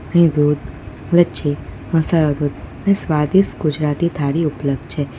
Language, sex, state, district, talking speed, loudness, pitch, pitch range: Gujarati, female, Gujarat, Valsad, 125 wpm, -18 LUFS, 150 Hz, 145-170 Hz